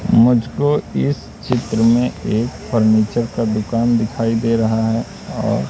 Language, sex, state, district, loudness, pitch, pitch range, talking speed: Hindi, male, Madhya Pradesh, Katni, -17 LUFS, 115 Hz, 110-120 Hz, 135 wpm